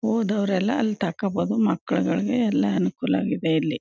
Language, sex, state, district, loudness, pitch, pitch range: Kannada, female, Karnataka, Chamarajanagar, -23 LUFS, 205 Hz, 185-225 Hz